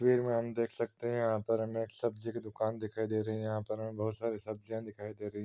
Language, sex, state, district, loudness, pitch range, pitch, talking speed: Hindi, male, Uttar Pradesh, Muzaffarnagar, -36 LUFS, 110-115 Hz, 110 Hz, 295 wpm